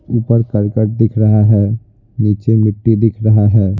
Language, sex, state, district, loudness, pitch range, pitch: Hindi, male, Bihar, Patna, -13 LUFS, 105-115 Hz, 110 Hz